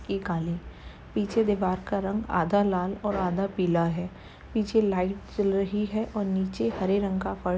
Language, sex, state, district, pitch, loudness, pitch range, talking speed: Hindi, female, Uttar Pradesh, Jalaun, 195 Hz, -27 LUFS, 180-205 Hz, 190 wpm